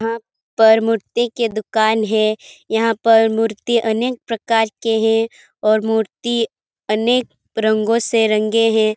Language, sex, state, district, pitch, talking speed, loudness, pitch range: Hindi, female, Bihar, Kishanganj, 225 Hz, 125 wpm, -17 LUFS, 220-230 Hz